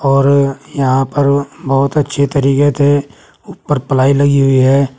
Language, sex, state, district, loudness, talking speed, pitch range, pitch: Hindi, male, Uttar Pradesh, Saharanpur, -13 LUFS, 145 wpm, 135-145 Hz, 140 Hz